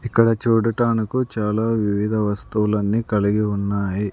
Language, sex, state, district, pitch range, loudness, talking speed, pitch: Telugu, male, Andhra Pradesh, Sri Satya Sai, 105-115 Hz, -20 LUFS, 100 wpm, 105 Hz